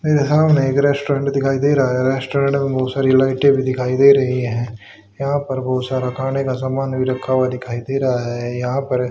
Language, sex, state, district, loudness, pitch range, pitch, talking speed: Hindi, male, Haryana, Charkhi Dadri, -18 LUFS, 125-140 Hz, 130 Hz, 230 wpm